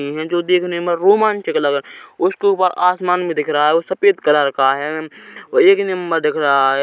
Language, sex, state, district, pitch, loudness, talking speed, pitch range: Hindi, male, Chhattisgarh, Kabirdham, 175 Hz, -16 LUFS, 210 wpm, 150-185 Hz